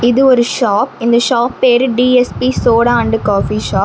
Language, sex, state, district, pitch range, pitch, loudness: Tamil, female, Tamil Nadu, Namakkal, 235-255 Hz, 245 Hz, -12 LUFS